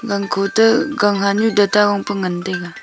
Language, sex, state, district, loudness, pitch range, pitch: Wancho, female, Arunachal Pradesh, Longding, -16 LUFS, 195-210 Hz, 200 Hz